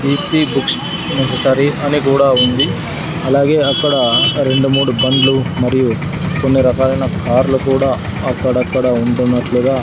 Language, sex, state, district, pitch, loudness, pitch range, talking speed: Telugu, male, Andhra Pradesh, Sri Satya Sai, 135 Hz, -14 LUFS, 125-140 Hz, 115 wpm